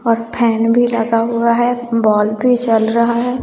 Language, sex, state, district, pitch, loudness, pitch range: Hindi, female, Bihar, West Champaran, 235 Hz, -14 LUFS, 230-240 Hz